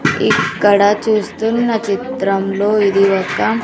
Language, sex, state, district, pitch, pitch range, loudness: Telugu, female, Andhra Pradesh, Sri Satya Sai, 205 Hz, 195-220 Hz, -15 LUFS